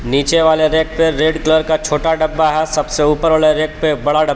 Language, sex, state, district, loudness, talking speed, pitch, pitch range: Hindi, male, Jharkhand, Palamu, -14 LUFS, 245 wpm, 155 Hz, 150-160 Hz